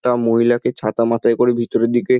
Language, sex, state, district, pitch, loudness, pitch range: Bengali, male, West Bengal, Dakshin Dinajpur, 120 Hz, -17 LUFS, 115-120 Hz